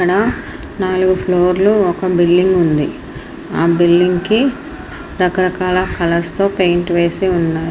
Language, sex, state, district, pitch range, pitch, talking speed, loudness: Telugu, female, Andhra Pradesh, Srikakulam, 175-190 Hz, 180 Hz, 125 wpm, -14 LUFS